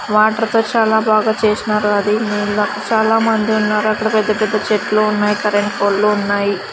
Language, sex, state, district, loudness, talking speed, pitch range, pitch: Telugu, female, Andhra Pradesh, Sri Satya Sai, -15 LUFS, 160 wpm, 210-220 Hz, 215 Hz